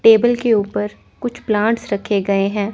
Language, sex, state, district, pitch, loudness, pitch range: Hindi, female, Chandigarh, Chandigarh, 210 Hz, -18 LUFS, 200-230 Hz